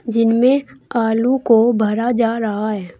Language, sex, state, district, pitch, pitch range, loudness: Hindi, female, Uttar Pradesh, Saharanpur, 230 Hz, 220-240 Hz, -17 LUFS